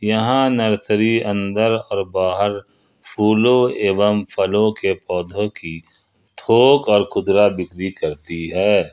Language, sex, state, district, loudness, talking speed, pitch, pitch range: Hindi, male, Jharkhand, Ranchi, -18 LUFS, 115 wpm, 105 Hz, 95-110 Hz